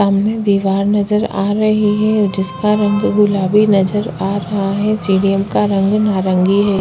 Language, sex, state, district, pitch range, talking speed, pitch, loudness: Hindi, female, Chhattisgarh, Korba, 195-210 Hz, 160 wpm, 200 Hz, -15 LUFS